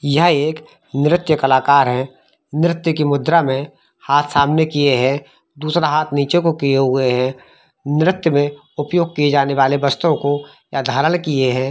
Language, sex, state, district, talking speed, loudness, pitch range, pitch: Hindi, male, Jharkhand, Jamtara, 155 wpm, -17 LUFS, 135-155 Hz, 145 Hz